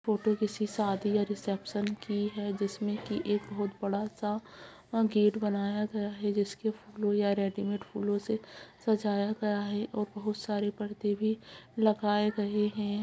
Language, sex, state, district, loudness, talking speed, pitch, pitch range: Hindi, female, Chhattisgarh, Kabirdham, -32 LUFS, 155 wpm, 210 Hz, 205-215 Hz